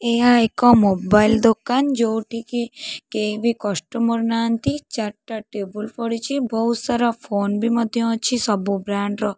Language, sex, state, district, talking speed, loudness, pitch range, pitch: Odia, female, Odisha, Khordha, 135 wpm, -20 LUFS, 210-235 Hz, 230 Hz